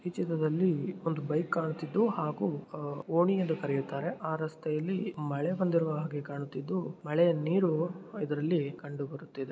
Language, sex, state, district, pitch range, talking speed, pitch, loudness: Kannada, male, Karnataka, Shimoga, 150-175 Hz, 140 wpm, 160 Hz, -32 LUFS